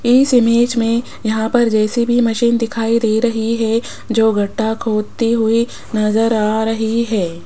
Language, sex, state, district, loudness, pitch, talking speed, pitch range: Hindi, female, Rajasthan, Jaipur, -16 LUFS, 225 Hz, 155 wpm, 220-235 Hz